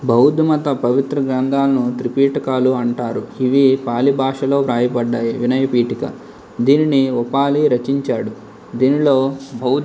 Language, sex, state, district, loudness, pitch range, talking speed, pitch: Telugu, male, Andhra Pradesh, Srikakulam, -17 LUFS, 125-140 Hz, 105 wpm, 135 Hz